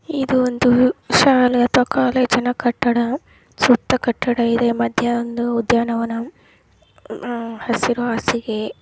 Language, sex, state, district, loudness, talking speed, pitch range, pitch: Kannada, male, Karnataka, Dharwad, -18 LUFS, 95 wpm, 235-250 Hz, 240 Hz